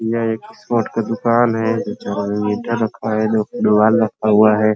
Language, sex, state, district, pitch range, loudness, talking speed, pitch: Hindi, male, Uttar Pradesh, Ghazipur, 105-115 Hz, -17 LUFS, 115 wpm, 110 Hz